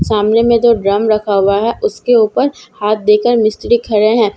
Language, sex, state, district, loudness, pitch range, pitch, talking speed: Hindi, female, Bihar, Katihar, -13 LUFS, 210-235 Hz, 220 Hz, 220 wpm